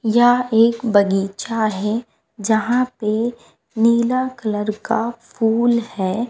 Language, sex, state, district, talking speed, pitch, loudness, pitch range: Hindi, female, Bihar, West Champaran, 105 wpm, 230 Hz, -19 LUFS, 215-235 Hz